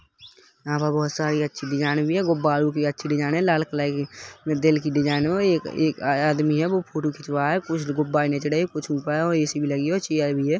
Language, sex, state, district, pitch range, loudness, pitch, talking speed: Hindi, male, Chhattisgarh, Rajnandgaon, 145-155 Hz, -23 LUFS, 150 Hz, 255 wpm